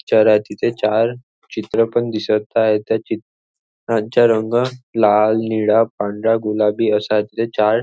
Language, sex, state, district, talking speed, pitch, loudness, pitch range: Marathi, male, Maharashtra, Nagpur, 120 wpm, 110 Hz, -17 LUFS, 105-115 Hz